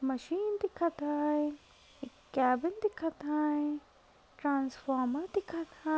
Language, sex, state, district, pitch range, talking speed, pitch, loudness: Marathi, female, Maharashtra, Sindhudurg, 275-335 Hz, 100 wpm, 295 Hz, -34 LUFS